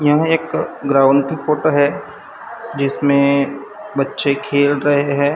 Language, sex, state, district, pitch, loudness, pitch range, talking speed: Hindi, male, Maharashtra, Gondia, 140 Hz, -16 LUFS, 140-145 Hz, 125 wpm